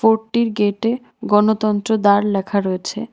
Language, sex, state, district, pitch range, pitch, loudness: Bengali, female, Tripura, West Tripura, 200-225 Hz, 215 Hz, -18 LUFS